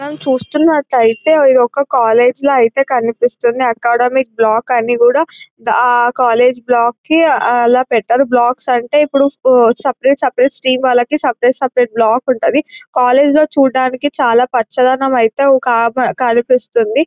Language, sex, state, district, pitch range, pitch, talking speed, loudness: Telugu, male, Telangana, Nalgonda, 240-275 Hz, 255 Hz, 125 wpm, -12 LUFS